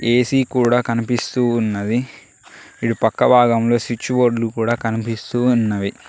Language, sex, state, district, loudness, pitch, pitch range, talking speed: Telugu, male, Telangana, Mahabubabad, -18 LUFS, 120 Hz, 115-125 Hz, 120 wpm